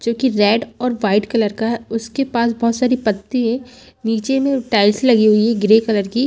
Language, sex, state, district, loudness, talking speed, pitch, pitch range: Hindi, female, Chhattisgarh, Rajnandgaon, -17 LUFS, 220 wpm, 230 Hz, 215-250 Hz